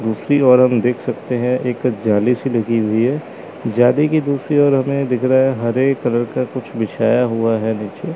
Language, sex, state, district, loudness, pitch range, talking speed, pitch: Hindi, male, Chandigarh, Chandigarh, -17 LUFS, 115-135 Hz, 205 wpm, 125 Hz